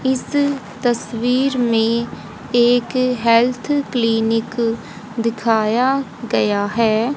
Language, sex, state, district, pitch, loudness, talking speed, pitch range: Hindi, female, Haryana, Jhajjar, 235 Hz, -18 LUFS, 75 wpm, 225-255 Hz